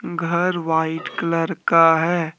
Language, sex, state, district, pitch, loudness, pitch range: Hindi, male, Jharkhand, Deoghar, 165 Hz, -19 LUFS, 160-170 Hz